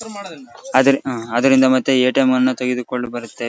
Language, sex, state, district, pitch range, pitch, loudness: Kannada, male, Karnataka, Bellary, 125-135 Hz, 130 Hz, -17 LUFS